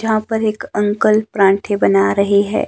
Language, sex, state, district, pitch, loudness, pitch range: Hindi, male, Himachal Pradesh, Shimla, 205 Hz, -15 LUFS, 200-215 Hz